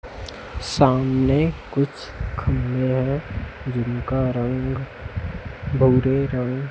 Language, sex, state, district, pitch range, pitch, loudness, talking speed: Hindi, male, Chhattisgarh, Raipur, 125-135 Hz, 130 Hz, -22 LUFS, 80 wpm